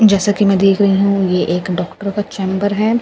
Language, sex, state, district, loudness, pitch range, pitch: Hindi, female, Bihar, Katihar, -15 LUFS, 190-205 Hz, 200 Hz